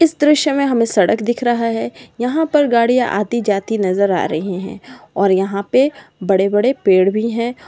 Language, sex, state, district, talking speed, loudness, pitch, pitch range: Magahi, female, Bihar, Samastipur, 180 wpm, -16 LUFS, 230 Hz, 195-250 Hz